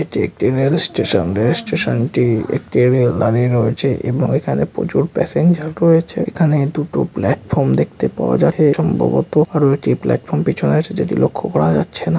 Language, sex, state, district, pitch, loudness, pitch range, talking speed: Bengali, male, West Bengal, Kolkata, 145 Hz, -16 LUFS, 125-165 Hz, 150 wpm